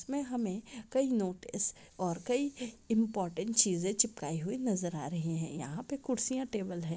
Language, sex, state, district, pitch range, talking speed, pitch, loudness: Hindi, female, Chhattisgarh, Raigarh, 175-245 Hz, 165 wpm, 220 Hz, -34 LUFS